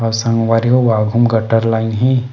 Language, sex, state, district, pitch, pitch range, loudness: Chhattisgarhi, male, Chhattisgarh, Bastar, 115 Hz, 115-120 Hz, -14 LUFS